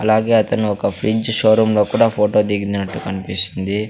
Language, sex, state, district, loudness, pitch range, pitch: Telugu, male, Andhra Pradesh, Sri Satya Sai, -17 LUFS, 100-110 Hz, 105 Hz